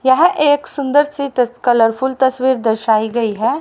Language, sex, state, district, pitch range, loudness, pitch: Hindi, female, Haryana, Rohtak, 230-280 Hz, -15 LUFS, 260 Hz